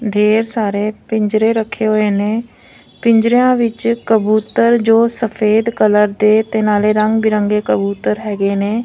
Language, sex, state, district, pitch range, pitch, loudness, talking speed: Punjabi, female, Punjab, Fazilka, 210-230 Hz, 215 Hz, -14 LUFS, 135 wpm